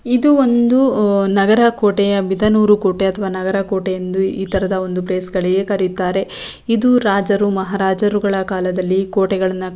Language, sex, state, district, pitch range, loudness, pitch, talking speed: Kannada, female, Karnataka, Shimoga, 190-210 Hz, -16 LUFS, 195 Hz, 135 wpm